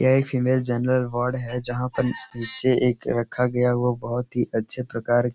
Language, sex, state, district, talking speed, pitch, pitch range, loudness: Hindi, male, Uttar Pradesh, Etah, 200 wpm, 125 Hz, 120-125 Hz, -24 LUFS